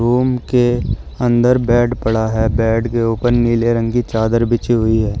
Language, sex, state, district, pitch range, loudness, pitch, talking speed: Hindi, male, Uttar Pradesh, Shamli, 110-120 Hz, -16 LUFS, 115 Hz, 175 wpm